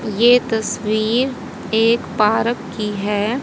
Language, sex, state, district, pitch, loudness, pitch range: Hindi, female, Haryana, Rohtak, 225 Hz, -18 LUFS, 210-240 Hz